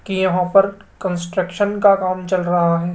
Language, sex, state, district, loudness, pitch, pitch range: Hindi, male, Rajasthan, Jaipur, -18 LUFS, 185 Hz, 175-195 Hz